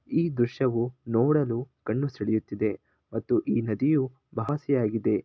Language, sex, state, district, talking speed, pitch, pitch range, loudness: Kannada, male, Karnataka, Shimoga, 115 wpm, 130 Hz, 115-140 Hz, -27 LUFS